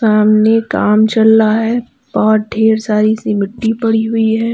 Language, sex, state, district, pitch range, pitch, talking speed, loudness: Hindi, female, Uttar Pradesh, Lalitpur, 215-225 Hz, 220 Hz, 170 wpm, -13 LUFS